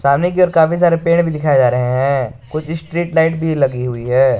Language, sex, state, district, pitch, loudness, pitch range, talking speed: Hindi, male, Jharkhand, Garhwa, 155 Hz, -15 LUFS, 130-165 Hz, 245 wpm